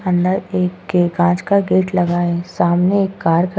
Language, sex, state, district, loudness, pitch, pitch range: Hindi, female, Goa, North and South Goa, -17 LUFS, 180 Hz, 175-185 Hz